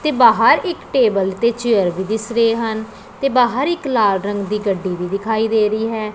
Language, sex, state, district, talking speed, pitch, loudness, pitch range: Punjabi, female, Punjab, Pathankot, 215 wpm, 220 Hz, -17 LUFS, 200-235 Hz